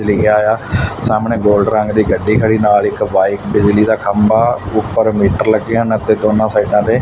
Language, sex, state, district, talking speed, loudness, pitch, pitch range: Punjabi, male, Punjab, Fazilka, 190 wpm, -13 LUFS, 105 Hz, 105-110 Hz